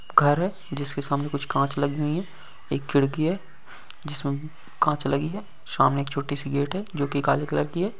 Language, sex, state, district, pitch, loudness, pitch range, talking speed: Hindi, male, Maharashtra, Solapur, 145 Hz, -26 LUFS, 140-165 Hz, 210 wpm